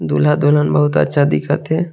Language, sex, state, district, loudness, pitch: Chhattisgarhi, male, Chhattisgarh, Sarguja, -15 LUFS, 145 Hz